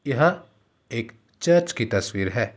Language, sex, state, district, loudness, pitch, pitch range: Hindi, male, Uttar Pradesh, Ghazipur, -23 LUFS, 115 Hz, 105-155 Hz